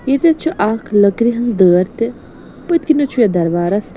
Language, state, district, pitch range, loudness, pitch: Kashmiri, Punjab, Kapurthala, 200-275 Hz, -14 LUFS, 230 Hz